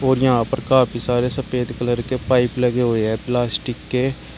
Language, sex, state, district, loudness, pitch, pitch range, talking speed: Hindi, male, Uttar Pradesh, Shamli, -20 LUFS, 125 Hz, 120-130 Hz, 190 wpm